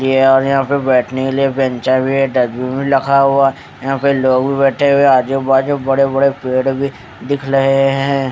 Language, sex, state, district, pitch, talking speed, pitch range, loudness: Hindi, male, Haryana, Charkhi Dadri, 135 Hz, 175 wpm, 130-135 Hz, -14 LUFS